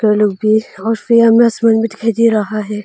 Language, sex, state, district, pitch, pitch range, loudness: Hindi, female, Arunachal Pradesh, Longding, 220 Hz, 215-230 Hz, -13 LUFS